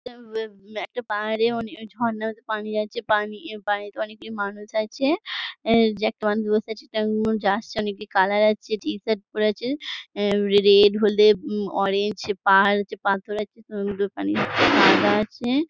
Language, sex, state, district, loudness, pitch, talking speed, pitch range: Bengali, female, West Bengal, Jhargram, -22 LUFS, 215 Hz, 105 wpm, 205-220 Hz